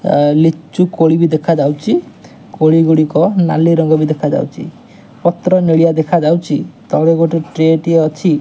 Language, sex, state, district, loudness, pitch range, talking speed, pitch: Odia, male, Odisha, Nuapada, -13 LUFS, 155-170 Hz, 140 wpm, 165 Hz